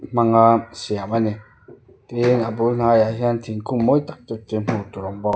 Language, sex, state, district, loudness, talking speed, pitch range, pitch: Mizo, male, Mizoram, Aizawl, -20 LUFS, 200 wpm, 110-120 Hz, 115 Hz